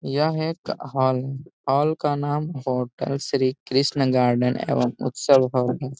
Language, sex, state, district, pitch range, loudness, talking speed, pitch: Hindi, male, Bihar, Gaya, 130-145 Hz, -23 LUFS, 150 wpm, 135 Hz